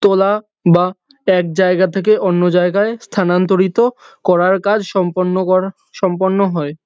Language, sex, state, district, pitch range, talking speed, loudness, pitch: Bengali, male, West Bengal, North 24 Parganas, 180-200 Hz, 120 wpm, -15 LUFS, 190 Hz